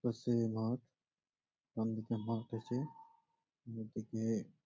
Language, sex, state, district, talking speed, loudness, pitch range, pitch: Bengali, male, West Bengal, Malda, 75 wpm, -40 LUFS, 110-130 Hz, 115 Hz